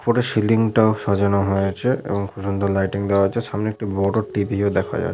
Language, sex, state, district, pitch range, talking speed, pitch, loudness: Bengali, male, West Bengal, Malda, 100-110 Hz, 210 wpm, 100 Hz, -20 LUFS